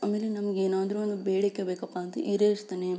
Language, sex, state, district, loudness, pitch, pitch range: Kannada, female, Karnataka, Belgaum, -29 LUFS, 200 Hz, 190-205 Hz